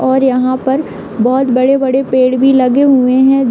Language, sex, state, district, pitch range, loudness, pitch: Hindi, female, Uttar Pradesh, Hamirpur, 255-270 Hz, -11 LUFS, 260 Hz